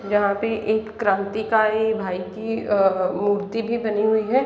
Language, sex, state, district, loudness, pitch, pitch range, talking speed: Hindi, female, Bihar, East Champaran, -22 LUFS, 215 Hz, 200-220 Hz, 160 wpm